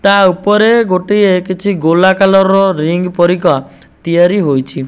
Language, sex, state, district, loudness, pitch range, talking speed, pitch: Odia, male, Odisha, Nuapada, -11 LUFS, 170-195 Hz, 110 wpm, 185 Hz